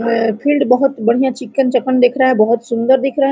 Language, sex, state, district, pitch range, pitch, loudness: Hindi, female, Jharkhand, Sahebganj, 235-270 Hz, 255 Hz, -14 LUFS